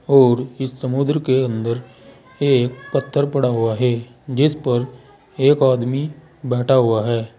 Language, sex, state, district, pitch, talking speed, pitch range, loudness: Hindi, male, Uttar Pradesh, Saharanpur, 130 Hz, 140 wpm, 120-140 Hz, -19 LUFS